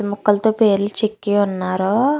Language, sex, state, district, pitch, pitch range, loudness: Telugu, female, Andhra Pradesh, Chittoor, 205 Hz, 200-220 Hz, -18 LUFS